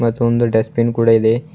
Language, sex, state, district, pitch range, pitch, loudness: Kannada, male, Karnataka, Bidar, 115-120 Hz, 115 Hz, -15 LUFS